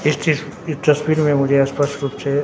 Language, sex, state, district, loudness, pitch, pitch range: Hindi, male, Bihar, Katihar, -18 LUFS, 145 Hz, 140-155 Hz